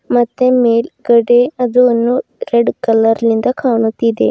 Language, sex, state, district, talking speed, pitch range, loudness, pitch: Kannada, female, Karnataka, Bidar, 110 wpm, 230-250 Hz, -13 LUFS, 240 Hz